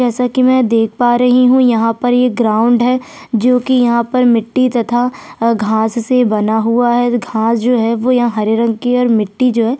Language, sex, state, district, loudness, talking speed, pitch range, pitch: Hindi, female, Chhattisgarh, Sukma, -13 LUFS, 210 wpm, 230-250 Hz, 240 Hz